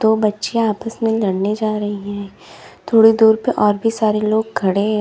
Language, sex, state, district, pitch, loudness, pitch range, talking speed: Hindi, female, Uttar Pradesh, Lalitpur, 215 Hz, -17 LUFS, 205-225 Hz, 205 wpm